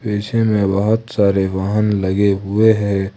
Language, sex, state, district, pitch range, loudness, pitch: Hindi, male, Jharkhand, Ranchi, 100-110 Hz, -16 LUFS, 100 Hz